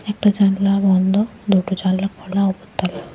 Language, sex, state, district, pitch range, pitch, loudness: Bengali, female, West Bengal, Kolkata, 190-205 Hz, 195 Hz, -18 LUFS